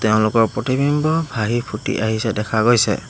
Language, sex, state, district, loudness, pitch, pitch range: Assamese, male, Assam, Hailakandi, -18 LUFS, 115 Hz, 110-130 Hz